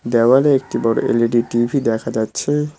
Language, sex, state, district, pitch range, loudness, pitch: Bengali, male, West Bengal, Cooch Behar, 115-135 Hz, -17 LUFS, 120 Hz